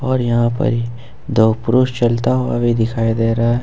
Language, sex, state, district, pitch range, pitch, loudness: Hindi, male, Jharkhand, Ranchi, 115-125 Hz, 120 Hz, -16 LUFS